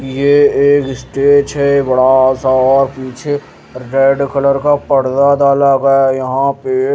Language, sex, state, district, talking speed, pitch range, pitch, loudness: Hindi, male, Haryana, Jhajjar, 155 wpm, 130-140 Hz, 135 Hz, -12 LUFS